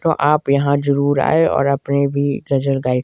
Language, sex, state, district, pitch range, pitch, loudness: Hindi, male, Himachal Pradesh, Shimla, 135-145 Hz, 140 Hz, -17 LUFS